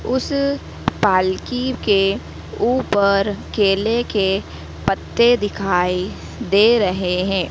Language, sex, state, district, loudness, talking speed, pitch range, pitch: Hindi, female, Madhya Pradesh, Dhar, -18 LUFS, 90 wpm, 190-240 Hz, 200 Hz